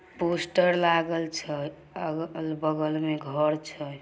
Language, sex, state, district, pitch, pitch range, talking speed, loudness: Magahi, female, Bihar, Samastipur, 155 Hz, 150-170 Hz, 120 wpm, -28 LUFS